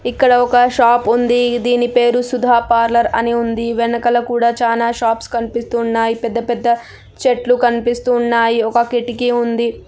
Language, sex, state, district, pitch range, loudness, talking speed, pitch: Telugu, female, Andhra Pradesh, Anantapur, 235-245 Hz, -15 LUFS, 140 wpm, 235 Hz